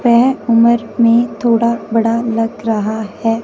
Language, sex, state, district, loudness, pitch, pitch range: Hindi, female, Punjab, Fazilka, -14 LUFS, 230 Hz, 225-235 Hz